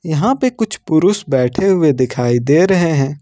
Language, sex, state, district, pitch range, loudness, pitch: Hindi, male, Jharkhand, Ranchi, 135-195 Hz, -14 LUFS, 160 Hz